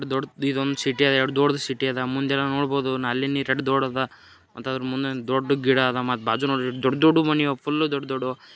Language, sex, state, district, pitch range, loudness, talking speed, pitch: Kannada, male, Karnataka, Gulbarga, 130-140 Hz, -23 LUFS, 210 wpm, 135 Hz